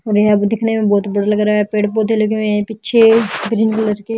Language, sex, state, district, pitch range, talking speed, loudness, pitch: Hindi, female, Haryana, Jhajjar, 210-220 Hz, 245 wpm, -15 LUFS, 215 Hz